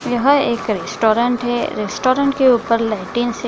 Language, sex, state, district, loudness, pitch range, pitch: Hindi, female, Bihar, Gaya, -17 LUFS, 230-255 Hz, 240 Hz